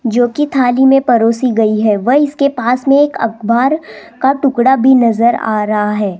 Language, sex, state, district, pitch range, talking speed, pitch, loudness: Hindi, female, Rajasthan, Jaipur, 225-270 Hz, 185 wpm, 245 Hz, -12 LUFS